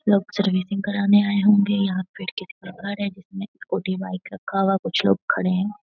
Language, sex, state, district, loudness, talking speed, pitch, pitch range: Hindi, female, Bihar, Saharsa, -22 LUFS, 205 wpm, 195 Hz, 185-205 Hz